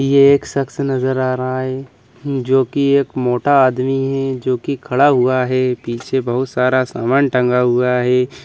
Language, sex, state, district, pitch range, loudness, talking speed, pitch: Hindi, male, Bihar, Begusarai, 125-135 Hz, -16 LUFS, 165 wpm, 130 Hz